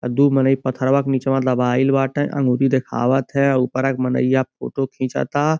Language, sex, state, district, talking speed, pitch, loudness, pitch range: Bhojpuri, male, Uttar Pradesh, Gorakhpur, 160 wpm, 135 Hz, -19 LUFS, 130-135 Hz